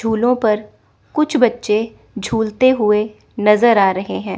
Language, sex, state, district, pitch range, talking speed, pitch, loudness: Hindi, female, Chandigarh, Chandigarh, 210-245 Hz, 135 wpm, 220 Hz, -16 LUFS